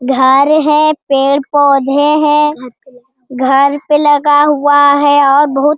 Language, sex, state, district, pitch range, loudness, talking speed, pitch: Hindi, female, Bihar, Jamui, 270-295 Hz, -10 LUFS, 125 wpm, 285 Hz